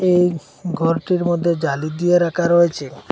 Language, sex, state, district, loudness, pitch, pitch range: Bengali, male, Assam, Hailakandi, -18 LUFS, 170 Hz, 160-175 Hz